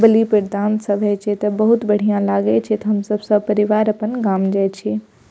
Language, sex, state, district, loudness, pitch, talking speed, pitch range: Maithili, female, Bihar, Purnia, -18 LUFS, 210 Hz, 190 wpm, 195-215 Hz